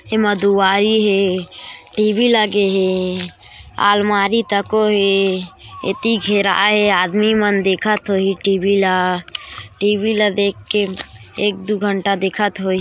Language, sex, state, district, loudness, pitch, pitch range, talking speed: Chhattisgarhi, female, Chhattisgarh, Korba, -16 LUFS, 200 Hz, 190-210 Hz, 110 wpm